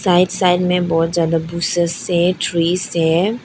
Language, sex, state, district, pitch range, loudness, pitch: Hindi, female, Arunachal Pradesh, Lower Dibang Valley, 165-180 Hz, -17 LUFS, 175 Hz